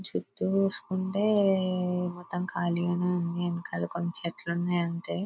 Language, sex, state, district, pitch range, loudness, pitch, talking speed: Telugu, female, Telangana, Nalgonda, 170-185 Hz, -29 LUFS, 180 Hz, 115 wpm